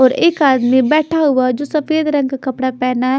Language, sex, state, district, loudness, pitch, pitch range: Hindi, female, Chhattisgarh, Raipur, -15 LUFS, 265 Hz, 260-305 Hz